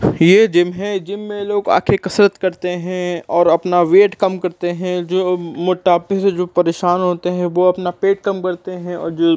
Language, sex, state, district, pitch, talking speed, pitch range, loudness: Hindi, male, Uttar Pradesh, Jalaun, 180 Hz, 220 wpm, 175-190 Hz, -16 LUFS